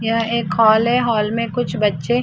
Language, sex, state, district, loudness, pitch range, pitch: Hindi, female, Chhattisgarh, Rajnandgaon, -17 LUFS, 215-235 Hz, 230 Hz